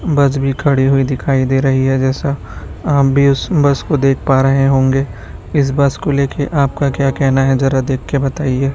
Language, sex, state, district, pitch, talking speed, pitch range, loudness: Hindi, male, Chhattisgarh, Raipur, 135 Hz, 205 wpm, 135-140 Hz, -14 LUFS